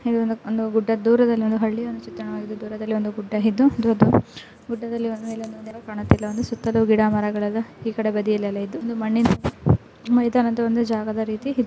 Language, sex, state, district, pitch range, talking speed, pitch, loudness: Kannada, female, Karnataka, Belgaum, 215-235 Hz, 130 wpm, 225 Hz, -22 LUFS